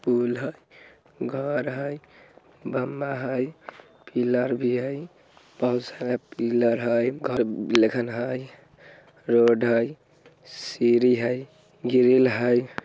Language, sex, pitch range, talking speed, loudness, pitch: Bhojpuri, male, 120-135 Hz, 100 wpm, -24 LUFS, 125 Hz